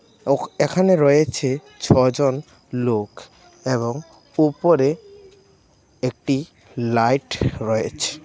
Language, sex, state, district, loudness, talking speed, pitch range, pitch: Bengali, male, Tripura, West Tripura, -20 LUFS, 80 wpm, 125-155 Hz, 135 Hz